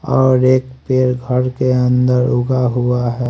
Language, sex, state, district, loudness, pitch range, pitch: Hindi, male, Haryana, Rohtak, -15 LUFS, 125-130 Hz, 125 Hz